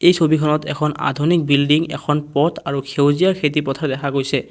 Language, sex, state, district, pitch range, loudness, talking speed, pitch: Assamese, male, Assam, Kamrup Metropolitan, 140-155 Hz, -18 LUFS, 175 wpm, 150 Hz